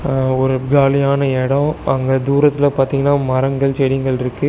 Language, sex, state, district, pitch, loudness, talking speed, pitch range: Tamil, male, Tamil Nadu, Chennai, 135 Hz, -16 LUFS, 120 wpm, 130-140 Hz